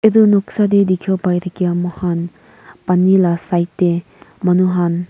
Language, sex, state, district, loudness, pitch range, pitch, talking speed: Nagamese, female, Nagaland, Kohima, -16 LUFS, 175-190 Hz, 180 Hz, 165 wpm